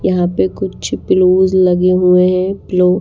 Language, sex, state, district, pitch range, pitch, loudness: Hindi, female, Bihar, Patna, 180-185 Hz, 185 Hz, -13 LUFS